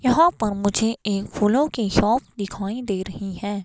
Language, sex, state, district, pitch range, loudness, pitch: Hindi, female, Himachal Pradesh, Shimla, 200-235 Hz, -22 LUFS, 210 Hz